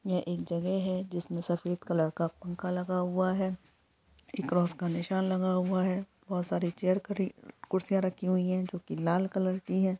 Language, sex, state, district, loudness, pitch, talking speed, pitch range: Hindi, female, Jharkhand, Sahebganj, -32 LUFS, 185 Hz, 190 wpm, 175-185 Hz